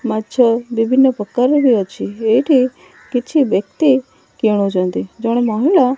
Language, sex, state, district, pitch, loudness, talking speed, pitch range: Odia, female, Odisha, Malkangiri, 245 Hz, -16 LUFS, 110 wpm, 220-265 Hz